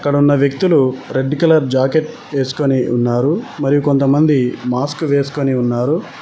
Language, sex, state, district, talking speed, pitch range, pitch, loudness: Telugu, male, Telangana, Mahabubabad, 125 wpm, 130-145 Hz, 140 Hz, -15 LUFS